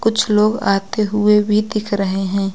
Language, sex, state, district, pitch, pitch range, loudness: Hindi, female, Uttar Pradesh, Lucknow, 210 Hz, 195-215 Hz, -17 LUFS